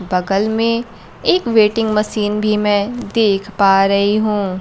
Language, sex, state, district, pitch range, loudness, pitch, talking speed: Hindi, female, Bihar, Kaimur, 200-220 Hz, -16 LUFS, 210 Hz, 145 wpm